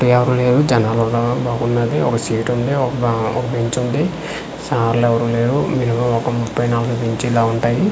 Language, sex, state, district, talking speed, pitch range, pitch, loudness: Telugu, male, Andhra Pradesh, Manyam, 175 wpm, 115-125 Hz, 120 Hz, -17 LUFS